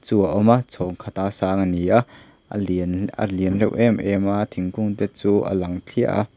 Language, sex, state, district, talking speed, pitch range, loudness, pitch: Mizo, male, Mizoram, Aizawl, 235 wpm, 95-105 Hz, -21 LUFS, 100 Hz